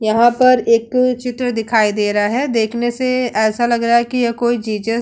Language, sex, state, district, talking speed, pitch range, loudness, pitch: Hindi, female, Uttar Pradesh, Jalaun, 225 wpm, 225-250 Hz, -16 LUFS, 235 Hz